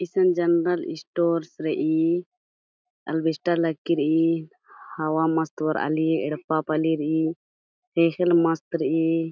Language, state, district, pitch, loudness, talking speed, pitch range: Kurukh, Chhattisgarh, Jashpur, 165 Hz, -24 LUFS, 115 wpm, 160-170 Hz